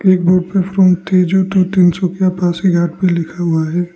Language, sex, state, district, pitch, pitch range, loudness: Hindi, male, Arunachal Pradesh, Lower Dibang Valley, 180 Hz, 175-185 Hz, -14 LUFS